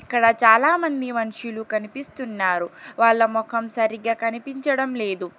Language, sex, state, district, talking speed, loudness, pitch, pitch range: Telugu, female, Telangana, Hyderabad, 100 wpm, -21 LUFS, 230 Hz, 220-255 Hz